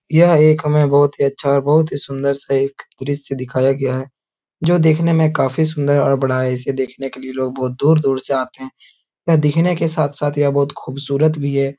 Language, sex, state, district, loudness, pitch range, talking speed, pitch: Hindi, male, Uttar Pradesh, Etah, -17 LUFS, 135-155 Hz, 215 wpm, 140 Hz